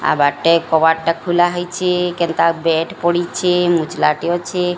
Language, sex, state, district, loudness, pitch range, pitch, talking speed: Odia, female, Odisha, Sambalpur, -16 LUFS, 165-175 Hz, 170 Hz, 125 wpm